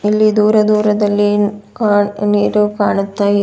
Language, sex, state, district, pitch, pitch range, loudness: Kannada, female, Karnataka, Bidar, 205 Hz, 205-210 Hz, -14 LUFS